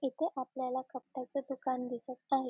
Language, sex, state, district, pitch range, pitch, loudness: Marathi, female, Maharashtra, Dhule, 255-270 Hz, 260 Hz, -38 LUFS